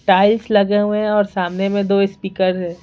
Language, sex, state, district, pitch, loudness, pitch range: Hindi, male, Bihar, Patna, 200 Hz, -17 LUFS, 190-205 Hz